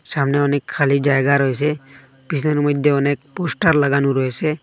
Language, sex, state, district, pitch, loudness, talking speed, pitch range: Bengali, male, Assam, Hailakandi, 140 Hz, -18 LUFS, 140 wpm, 140-150 Hz